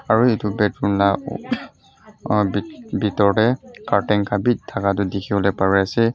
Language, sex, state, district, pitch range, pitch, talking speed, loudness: Nagamese, male, Mizoram, Aizawl, 100-120 Hz, 105 Hz, 145 wpm, -20 LUFS